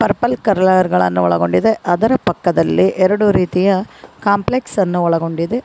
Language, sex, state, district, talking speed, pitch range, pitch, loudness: Kannada, female, Karnataka, Koppal, 85 wpm, 145-205 Hz, 185 Hz, -15 LUFS